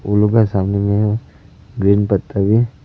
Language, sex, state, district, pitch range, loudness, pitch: Hindi, male, Arunachal Pradesh, Papum Pare, 100-110 Hz, -16 LUFS, 100 Hz